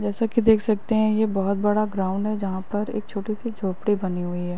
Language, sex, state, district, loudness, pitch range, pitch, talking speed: Hindi, female, Uttar Pradesh, Varanasi, -24 LUFS, 195-215 Hz, 210 Hz, 235 wpm